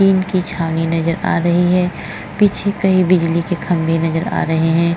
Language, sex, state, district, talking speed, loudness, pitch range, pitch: Hindi, female, Uttar Pradesh, Jyotiba Phule Nagar, 195 wpm, -16 LUFS, 165-185 Hz, 175 Hz